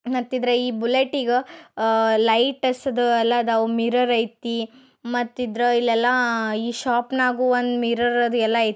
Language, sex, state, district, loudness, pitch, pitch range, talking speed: Kannada, male, Karnataka, Bijapur, -21 LUFS, 240 Hz, 230-250 Hz, 135 wpm